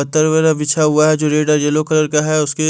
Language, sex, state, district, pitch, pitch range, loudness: Hindi, male, Delhi, New Delhi, 155 Hz, 150-155 Hz, -14 LUFS